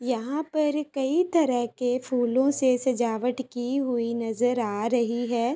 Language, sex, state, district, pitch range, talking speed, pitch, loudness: Hindi, female, Uttar Pradesh, Ghazipur, 240-270 Hz, 150 wpm, 250 Hz, -26 LUFS